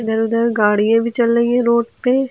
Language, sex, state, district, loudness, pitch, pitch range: Hindi, female, Uttar Pradesh, Lucknow, -16 LUFS, 235 Hz, 225-235 Hz